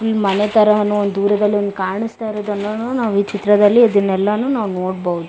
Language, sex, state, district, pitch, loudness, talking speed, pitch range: Kannada, female, Karnataka, Bellary, 205 Hz, -16 LUFS, 125 wpm, 200-215 Hz